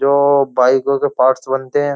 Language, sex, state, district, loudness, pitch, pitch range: Hindi, male, Uttar Pradesh, Jyotiba Phule Nagar, -14 LUFS, 140 Hz, 130-140 Hz